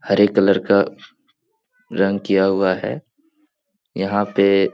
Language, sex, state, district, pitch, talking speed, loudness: Hindi, male, Bihar, Jahanabad, 105 Hz, 125 wpm, -18 LUFS